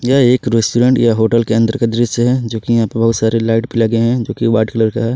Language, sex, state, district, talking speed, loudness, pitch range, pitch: Hindi, male, Jharkhand, Ranchi, 300 wpm, -14 LUFS, 115-120 Hz, 115 Hz